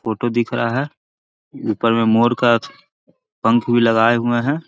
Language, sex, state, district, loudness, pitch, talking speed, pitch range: Magahi, male, Bihar, Jahanabad, -17 LUFS, 120 Hz, 165 wpm, 115-120 Hz